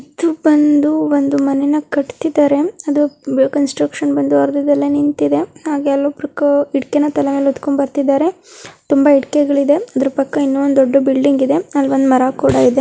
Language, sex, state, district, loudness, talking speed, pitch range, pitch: Kannada, female, Karnataka, Dharwad, -15 LUFS, 160 wpm, 275-295 Hz, 285 Hz